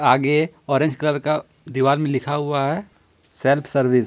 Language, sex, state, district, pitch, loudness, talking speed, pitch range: Hindi, male, Jharkhand, Ranchi, 145 Hz, -21 LUFS, 175 wpm, 135-150 Hz